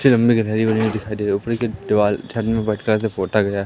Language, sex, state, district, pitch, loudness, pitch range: Hindi, male, Madhya Pradesh, Katni, 110 Hz, -19 LUFS, 105-115 Hz